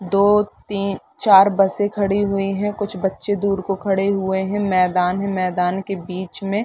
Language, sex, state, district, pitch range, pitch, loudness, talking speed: Hindi, female, Chhattisgarh, Bilaspur, 190-200 Hz, 195 Hz, -19 LUFS, 180 wpm